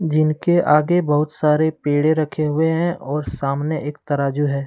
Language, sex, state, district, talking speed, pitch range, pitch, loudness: Hindi, male, Jharkhand, Deoghar, 165 wpm, 145-160 Hz, 150 Hz, -19 LUFS